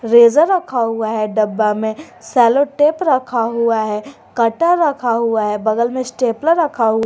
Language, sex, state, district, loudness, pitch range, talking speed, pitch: Hindi, female, Jharkhand, Garhwa, -16 LUFS, 220-285 Hz, 170 wpm, 235 Hz